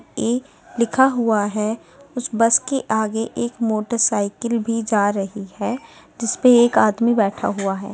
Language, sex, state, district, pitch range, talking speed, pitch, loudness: Hindi, female, Uttar Pradesh, Jyotiba Phule Nagar, 210-240 Hz, 150 wpm, 230 Hz, -19 LUFS